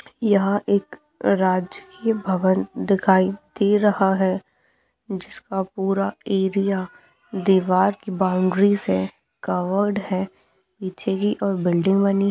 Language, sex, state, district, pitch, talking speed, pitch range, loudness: Hindi, female, Rajasthan, Nagaur, 195 Hz, 110 wpm, 185-200 Hz, -21 LUFS